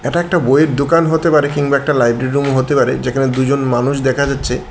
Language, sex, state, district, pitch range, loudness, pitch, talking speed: Bengali, male, Tripura, West Tripura, 130-150 Hz, -14 LUFS, 140 Hz, 215 wpm